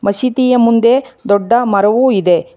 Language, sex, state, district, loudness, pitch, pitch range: Kannada, female, Karnataka, Bangalore, -12 LUFS, 235 Hz, 200-255 Hz